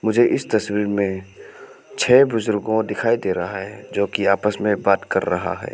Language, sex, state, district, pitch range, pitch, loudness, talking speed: Hindi, male, Arunachal Pradesh, Papum Pare, 100-110 Hz, 105 Hz, -20 LUFS, 190 wpm